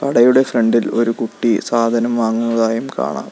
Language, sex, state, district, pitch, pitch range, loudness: Malayalam, male, Kerala, Kollam, 115 Hz, 115-120 Hz, -16 LUFS